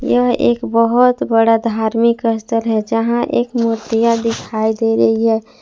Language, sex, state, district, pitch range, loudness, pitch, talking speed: Hindi, female, Jharkhand, Palamu, 225-235 Hz, -15 LUFS, 230 Hz, 150 wpm